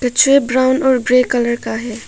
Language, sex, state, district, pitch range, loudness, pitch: Hindi, female, Arunachal Pradesh, Papum Pare, 235-260 Hz, -14 LUFS, 250 Hz